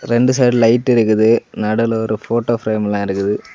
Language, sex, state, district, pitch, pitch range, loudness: Tamil, male, Tamil Nadu, Kanyakumari, 115 Hz, 110-120 Hz, -15 LUFS